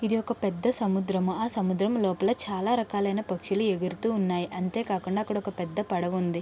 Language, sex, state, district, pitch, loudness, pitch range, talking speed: Telugu, female, Andhra Pradesh, Krishna, 200 Hz, -28 LUFS, 185-215 Hz, 175 wpm